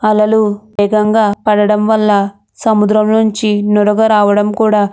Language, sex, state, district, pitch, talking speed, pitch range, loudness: Telugu, female, Andhra Pradesh, Krishna, 210 Hz, 120 wpm, 205-215 Hz, -12 LUFS